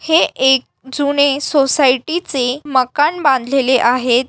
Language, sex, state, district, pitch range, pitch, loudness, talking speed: Marathi, female, Maharashtra, Aurangabad, 255-285 Hz, 270 Hz, -14 LUFS, 110 wpm